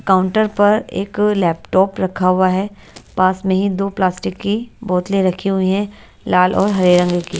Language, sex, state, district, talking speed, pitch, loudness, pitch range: Hindi, female, Odisha, Nuapada, 185 wpm, 190 Hz, -16 LUFS, 185-205 Hz